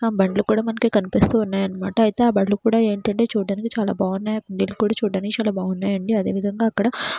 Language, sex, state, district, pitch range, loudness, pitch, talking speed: Telugu, female, Andhra Pradesh, Srikakulam, 195-225 Hz, -21 LUFS, 210 Hz, 185 wpm